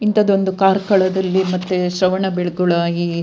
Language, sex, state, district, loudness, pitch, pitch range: Kannada, female, Karnataka, Dakshina Kannada, -17 LUFS, 185 Hz, 180-190 Hz